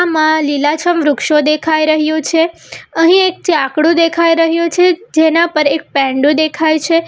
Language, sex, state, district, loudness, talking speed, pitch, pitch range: Gujarati, female, Gujarat, Valsad, -12 LUFS, 150 wpm, 320 Hz, 305-335 Hz